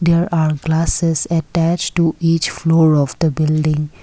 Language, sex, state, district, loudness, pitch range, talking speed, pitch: English, female, Assam, Kamrup Metropolitan, -16 LUFS, 155-165 Hz, 150 wpm, 165 Hz